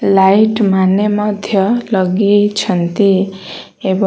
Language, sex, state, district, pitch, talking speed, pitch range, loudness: Odia, female, Odisha, Malkangiri, 200 Hz, 90 wpm, 190-210 Hz, -13 LUFS